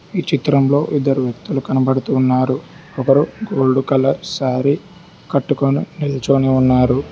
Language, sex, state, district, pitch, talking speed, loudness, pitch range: Telugu, male, Telangana, Hyderabad, 135 Hz, 110 wpm, -17 LUFS, 130-150 Hz